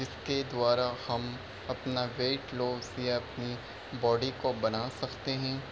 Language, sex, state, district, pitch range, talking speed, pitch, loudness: Hindi, male, Bihar, Lakhisarai, 120-130 Hz, 135 wpm, 125 Hz, -33 LUFS